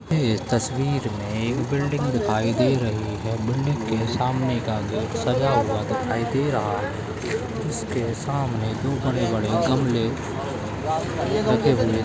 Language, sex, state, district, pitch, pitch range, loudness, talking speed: Hindi, male, Goa, North and South Goa, 115 Hz, 110-130 Hz, -24 LUFS, 140 wpm